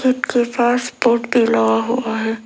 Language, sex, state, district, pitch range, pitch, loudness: Hindi, female, Arunachal Pradesh, Lower Dibang Valley, 225-245 Hz, 235 Hz, -17 LUFS